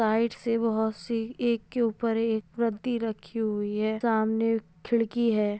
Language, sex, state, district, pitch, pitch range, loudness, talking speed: Hindi, female, Maharashtra, Dhule, 225 Hz, 220-230 Hz, -28 LUFS, 160 wpm